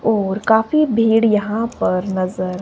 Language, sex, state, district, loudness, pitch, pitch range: Hindi, female, Himachal Pradesh, Shimla, -17 LUFS, 215 Hz, 190-225 Hz